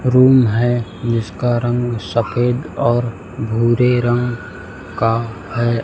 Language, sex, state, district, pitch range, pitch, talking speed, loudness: Hindi, male, Chhattisgarh, Raipur, 115-120 Hz, 120 Hz, 105 wpm, -17 LUFS